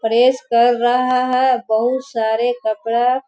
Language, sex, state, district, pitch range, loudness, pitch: Hindi, female, Bihar, Sitamarhi, 230-255 Hz, -17 LUFS, 245 Hz